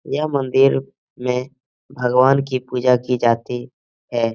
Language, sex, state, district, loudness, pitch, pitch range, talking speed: Hindi, male, Bihar, Jahanabad, -19 LUFS, 125 Hz, 120-135 Hz, 125 wpm